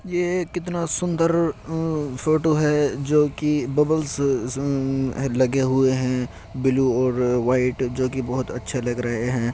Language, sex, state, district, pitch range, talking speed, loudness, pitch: Hindi, male, Uttar Pradesh, Jyotiba Phule Nagar, 130-155 Hz, 120 wpm, -22 LUFS, 135 Hz